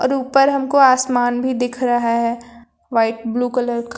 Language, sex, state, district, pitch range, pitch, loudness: Hindi, female, Uttar Pradesh, Lucknow, 235-255 Hz, 245 Hz, -17 LUFS